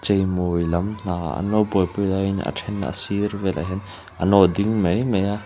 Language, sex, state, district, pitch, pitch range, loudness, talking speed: Mizo, male, Mizoram, Aizawl, 95 Hz, 90-100 Hz, -22 LUFS, 220 wpm